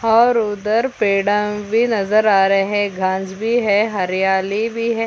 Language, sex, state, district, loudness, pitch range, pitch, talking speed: Hindi, female, Chhattisgarh, Korba, -17 LUFS, 195-225 Hz, 210 Hz, 175 wpm